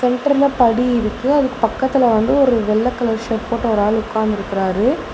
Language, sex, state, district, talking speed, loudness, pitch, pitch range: Tamil, female, Tamil Nadu, Nilgiris, 165 wpm, -17 LUFS, 235 Hz, 220-255 Hz